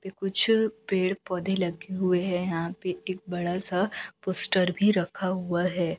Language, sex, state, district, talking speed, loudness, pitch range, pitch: Hindi, female, Chhattisgarh, Raipur, 160 wpm, -24 LUFS, 180-195 Hz, 185 Hz